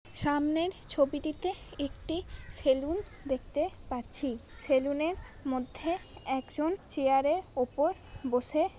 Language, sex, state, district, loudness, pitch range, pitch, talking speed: Bengali, female, West Bengal, Kolkata, -32 LUFS, 265-330 Hz, 290 Hz, 80 wpm